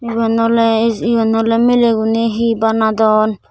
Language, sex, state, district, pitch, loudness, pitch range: Chakma, female, Tripura, Dhalai, 225 Hz, -14 LUFS, 220-230 Hz